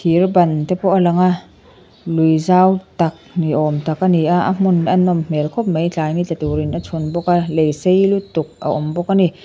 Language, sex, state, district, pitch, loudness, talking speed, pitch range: Mizo, female, Mizoram, Aizawl, 170 Hz, -16 LUFS, 245 wpm, 160-185 Hz